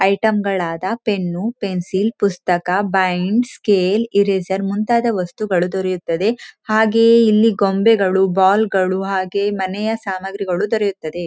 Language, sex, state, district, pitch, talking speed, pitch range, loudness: Kannada, female, Karnataka, Dakshina Kannada, 195 Hz, 105 wpm, 185-215 Hz, -17 LUFS